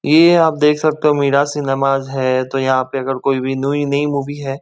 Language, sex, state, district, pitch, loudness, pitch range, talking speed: Hindi, male, West Bengal, Kolkata, 140 Hz, -16 LUFS, 135-145 Hz, 235 wpm